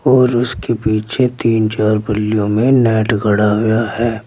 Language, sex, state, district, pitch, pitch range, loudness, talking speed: Hindi, male, Uttar Pradesh, Saharanpur, 110 Hz, 105-120 Hz, -15 LUFS, 155 wpm